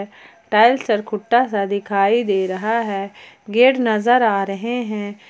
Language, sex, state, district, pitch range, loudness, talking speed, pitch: Hindi, female, Jharkhand, Ranchi, 200-235 Hz, -18 LUFS, 135 wpm, 215 Hz